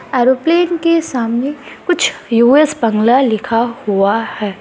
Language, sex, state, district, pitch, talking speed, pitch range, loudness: Hindi, female, Bihar, Kishanganj, 245 Hz, 115 wpm, 230-300 Hz, -14 LUFS